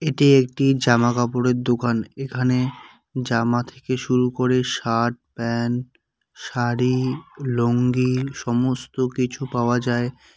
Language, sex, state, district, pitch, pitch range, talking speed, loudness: Bengali, male, West Bengal, Cooch Behar, 125 Hz, 120-130 Hz, 100 wpm, -21 LUFS